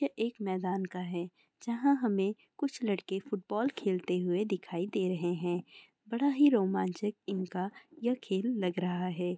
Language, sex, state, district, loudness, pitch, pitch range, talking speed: Hindi, female, Bihar, Bhagalpur, -33 LUFS, 195 Hz, 180-230 Hz, 160 wpm